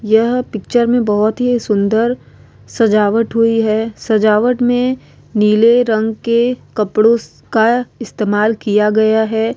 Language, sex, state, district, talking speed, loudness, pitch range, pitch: Hindi, female, Bihar, Vaishali, 125 wpm, -14 LUFS, 215-240 Hz, 220 Hz